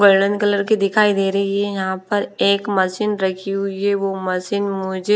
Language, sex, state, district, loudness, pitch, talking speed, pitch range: Hindi, female, Odisha, Nuapada, -19 LUFS, 200 Hz, 195 wpm, 190-205 Hz